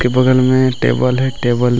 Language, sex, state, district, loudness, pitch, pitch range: Hindi, male, Jharkhand, Deoghar, -14 LUFS, 130 Hz, 125-130 Hz